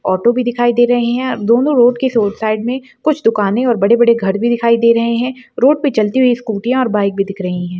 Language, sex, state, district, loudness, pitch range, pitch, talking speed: Kumaoni, female, Uttarakhand, Uttarkashi, -14 LUFS, 215-250 Hz, 235 Hz, 245 wpm